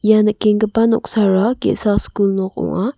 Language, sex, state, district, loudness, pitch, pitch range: Garo, female, Meghalaya, West Garo Hills, -16 LUFS, 210 Hz, 200-220 Hz